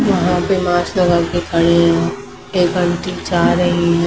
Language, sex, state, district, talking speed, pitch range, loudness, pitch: Hindi, female, Maharashtra, Mumbai Suburban, 175 wpm, 170-180 Hz, -15 LUFS, 175 Hz